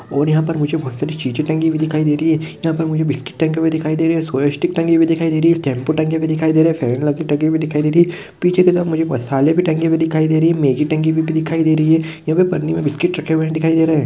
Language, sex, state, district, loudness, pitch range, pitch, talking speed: Hindi, male, Rajasthan, Nagaur, -16 LUFS, 155-160 Hz, 160 Hz, 305 wpm